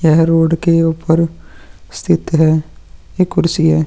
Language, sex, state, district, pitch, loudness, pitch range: Hindi, male, Uttarakhand, Tehri Garhwal, 165 Hz, -14 LUFS, 160-165 Hz